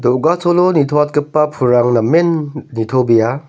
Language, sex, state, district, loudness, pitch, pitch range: Garo, male, Meghalaya, North Garo Hills, -14 LUFS, 150 Hz, 125-155 Hz